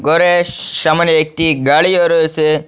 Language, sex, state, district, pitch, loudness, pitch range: Bengali, male, Assam, Hailakandi, 160 Hz, -12 LUFS, 155-170 Hz